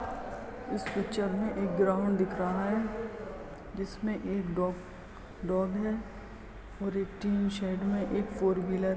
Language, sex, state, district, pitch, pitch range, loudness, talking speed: Hindi, male, Bihar, Sitamarhi, 195 Hz, 190-205 Hz, -32 LUFS, 145 wpm